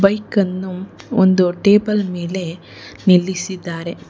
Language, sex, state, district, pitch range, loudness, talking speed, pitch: Kannada, female, Karnataka, Bangalore, 180-200 Hz, -17 LUFS, 90 wpm, 185 Hz